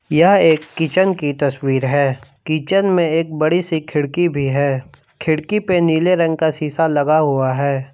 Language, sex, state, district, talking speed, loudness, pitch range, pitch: Hindi, male, Jharkhand, Palamu, 175 wpm, -17 LUFS, 140-165 Hz, 155 Hz